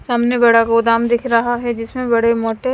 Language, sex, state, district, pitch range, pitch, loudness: Hindi, female, Himachal Pradesh, Shimla, 230-240 Hz, 235 Hz, -15 LUFS